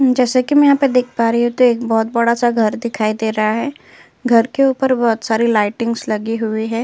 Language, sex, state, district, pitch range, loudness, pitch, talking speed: Hindi, female, Uttar Pradesh, Jyotiba Phule Nagar, 225-250 Hz, -16 LUFS, 235 Hz, 255 wpm